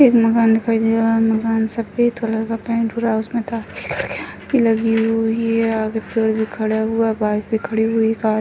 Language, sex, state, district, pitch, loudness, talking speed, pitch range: Hindi, female, Bihar, Sitamarhi, 225 Hz, -19 LUFS, 215 wpm, 220-230 Hz